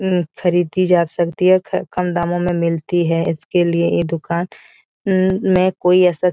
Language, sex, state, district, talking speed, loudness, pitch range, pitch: Hindi, female, Bihar, Jahanabad, 190 wpm, -17 LUFS, 170-185 Hz, 175 Hz